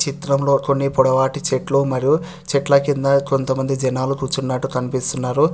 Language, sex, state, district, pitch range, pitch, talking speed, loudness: Telugu, male, Telangana, Hyderabad, 130-140 Hz, 135 Hz, 120 wpm, -19 LUFS